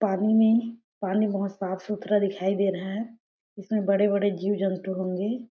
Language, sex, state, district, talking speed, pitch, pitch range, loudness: Hindi, female, Chhattisgarh, Sarguja, 175 wpm, 200 Hz, 195-215 Hz, -26 LUFS